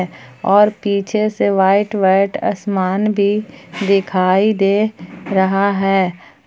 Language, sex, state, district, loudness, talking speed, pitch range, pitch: Hindi, female, Jharkhand, Palamu, -16 LUFS, 100 wpm, 190-210 Hz, 200 Hz